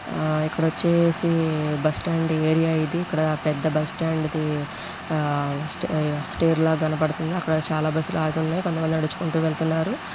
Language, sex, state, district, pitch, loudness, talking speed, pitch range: Telugu, female, Andhra Pradesh, Guntur, 160 Hz, -24 LUFS, 155 wpm, 155-165 Hz